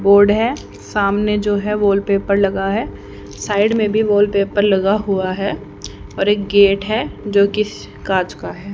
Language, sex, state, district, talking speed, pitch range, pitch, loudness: Hindi, female, Haryana, Jhajjar, 160 wpm, 195-205 Hz, 200 Hz, -16 LUFS